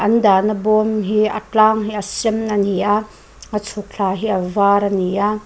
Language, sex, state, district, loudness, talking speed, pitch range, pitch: Mizo, female, Mizoram, Aizawl, -17 LUFS, 230 wpm, 200-215 Hz, 210 Hz